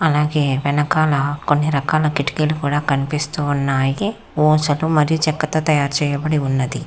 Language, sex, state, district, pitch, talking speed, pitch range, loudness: Telugu, female, Telangana, Hyderabad, 150 Hz, 115 wpm, 140-155 Hz, -18 LUFS